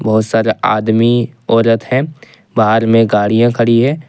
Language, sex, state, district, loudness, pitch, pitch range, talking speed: Hindi, male, Jharkhand, Ranchi, -13 LUFS, 115 Hz, 110-120 Hz, 145 wpm